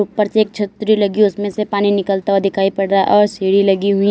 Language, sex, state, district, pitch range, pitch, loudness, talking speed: Hindi, female, Uttar Pradesh, Lalitpur, 195-210 Hz, 200 Hz, -15 LUFS, 260 wpm